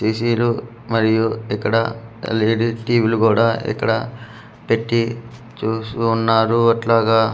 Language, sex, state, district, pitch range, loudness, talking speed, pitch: Telugu, male, Andhra Pradesh, Manyam, 110-115 Hz, -18 LUFS, 90 wpm, 115 Hz